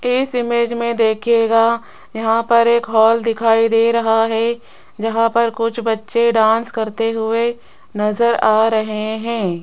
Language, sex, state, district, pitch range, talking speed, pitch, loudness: Hindi, female, Rajasthan, Jaipur, 225-235 Hz, 145 wpm, 225 Hz, -16 LUFS